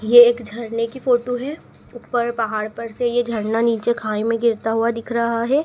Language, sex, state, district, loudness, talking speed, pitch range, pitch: Hindi, female, Madhya Pradesh, Dhar, -20 LUFS, 210 wpm, 225-240 Hz, 235 Hz